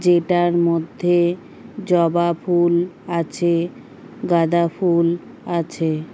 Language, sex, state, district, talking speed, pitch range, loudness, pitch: Bengali, female, West Bengal, Paschim Medinipur, 80 wpm, 170-175 Hz, -19 LUFS, 170 Hz